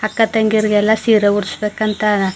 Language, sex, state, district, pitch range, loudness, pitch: Kannada, female, Karnataka, Mysore, 205-220 Hz, -15 LUFS, 215 Hz